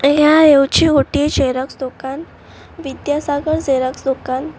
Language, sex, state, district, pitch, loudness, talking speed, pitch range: Odia, female, Odisha, Khordha, 285 Hz, -15 LUFS, 105 wpm, 265-300 Hz